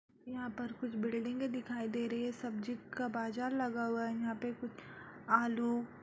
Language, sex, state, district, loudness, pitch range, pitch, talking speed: Hindi, female, Bihar, Purnia, -38 LUFS, 230-245 Hz, 240 Hz, 200 wpm